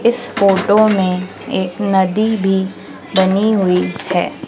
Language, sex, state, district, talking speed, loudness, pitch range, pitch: Hindi, female, Madhya Pradesh, Dhar, 120 wpm, -15 LUFS, 190-210 Hz, 195 Hz